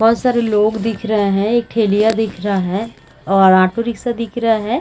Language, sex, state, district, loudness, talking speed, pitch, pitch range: Hindi, female, Chhattisgarh, Raigarh, -16 LUFS, 225 wpm, 220 Hz, 200-230 Hz